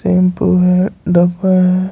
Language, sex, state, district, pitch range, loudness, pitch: Hindi, male, Jharkhand, Ranchi, 180-185 Hz, -13 LUFS, 185 Hz